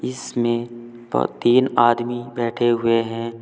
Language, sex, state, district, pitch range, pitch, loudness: Hindi, male, Uttar Pradesh, Saharanpur, 115-120 Hz, 120 Hz, -20 LUFS